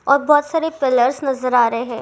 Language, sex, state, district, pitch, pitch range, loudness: Hindi, female, Rajasthan, Churu, 265 Hz, 245-290 Hz, -17 LUFS